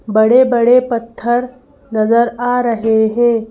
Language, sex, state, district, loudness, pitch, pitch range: Hindi, female, Madhya Pradesh, Bhopal, -14 LUFS, 235 Hz, 225-245 Hz